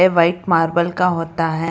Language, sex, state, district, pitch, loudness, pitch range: Hindi, female, Karnataka, Bangalore, 170 Hz, -17 LUFS, 165-175 Hz